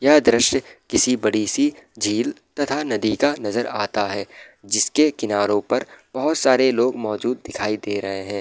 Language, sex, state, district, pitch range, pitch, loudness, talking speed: Hindi, male, Bihar, Saharsa, 105-130 Hz, 110 Hz, -21 LUFS, 165 wpm